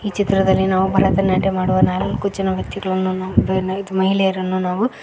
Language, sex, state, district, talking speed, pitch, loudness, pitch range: Kannada, female, Karnataka, Koppal, 130 wpm, 190 Hz, -18 LUFS, 185-195 Hz